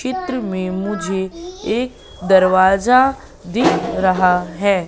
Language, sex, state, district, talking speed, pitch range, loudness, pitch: Hindi, female, Madhya Pradesh, Katni, 100 wpm, 185-250 Hz, -17 LUFS, 195 Hz